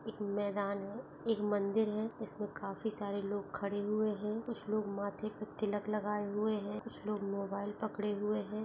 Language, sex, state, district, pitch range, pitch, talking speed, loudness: Hindi, female, Chhattisgarh, Bastar, 205-215 Hz, 210 Hz, 185 wpm, -38 LUFS